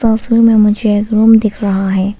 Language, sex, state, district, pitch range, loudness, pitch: Hindi, female, Arunachal Pradesh, Papum Pare, 205-225 Hz, -11 LUFS, 215 Hz